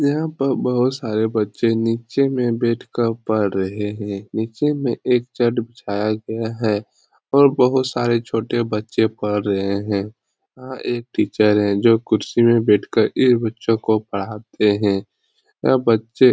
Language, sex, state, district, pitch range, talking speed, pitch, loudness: Hindi, male, Bihar, Jahanabad, 105-120 Hz, 175 wpm, 115 Hz, -19 LUFS